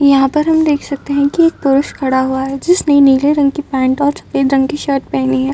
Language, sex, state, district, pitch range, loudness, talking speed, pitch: Hindi, female, Uttar Pradesh, Muzaffarnagar, 270-295 Hz, -13 LUFS, 260 wpm, 280 Hz